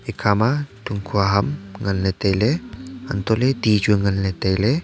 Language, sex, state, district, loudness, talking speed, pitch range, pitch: Wancho, male, Arunachal Pradesh, Longding, -20 LUFS, 175 wpm, 100-120 Hz, 105 Hz